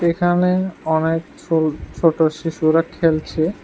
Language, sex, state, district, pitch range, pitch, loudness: Bengali, male, Tripura, West Tripura, 160-170 Hz, 165 Hz, -19 LUFS